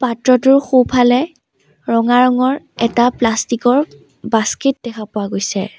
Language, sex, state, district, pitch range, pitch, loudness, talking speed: Assamese, female, Assam, Sonitpur, 230-255 Hz, 245 Hz, -15 LUFS, 115 wpm